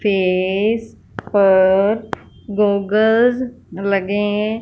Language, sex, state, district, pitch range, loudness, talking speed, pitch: Hindi, female, Punjab, Fazilka, 195-220 Hz, -17 LUFS, 50 wpm, 205 Hz